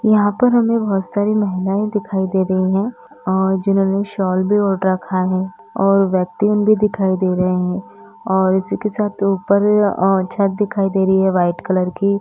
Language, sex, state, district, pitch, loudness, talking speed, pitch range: Hindi, female, Uttar Pradesh, Etah, 195 Hz, -17 LUFS, 195 wpm, 185-205 Hz